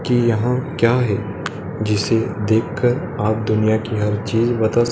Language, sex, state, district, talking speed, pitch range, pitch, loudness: Hindi, male, Madhya Pradesh, Dhar, 160 wpm, 110-120 Hz, 110 Hz, -19 LUFS